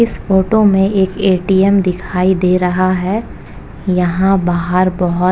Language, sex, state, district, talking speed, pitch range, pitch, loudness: Hindi, female, Uttar Pradesh, Jalaun, 145 wpm, 180-195 Hz, 185 Hz, -14 LUFS